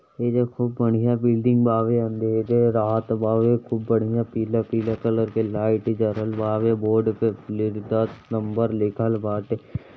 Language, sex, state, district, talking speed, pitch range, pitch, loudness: Bhojpuri, male, Uttar Pradesh, Gorakhpur, 125 wpm, 110-115 Hz, 115 Hz, -23 LUFS